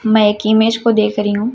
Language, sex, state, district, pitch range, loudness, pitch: Hindi, female, Chhattisgarh, Raipur, 210-225 Hz, -14 LUFS, 220 Hz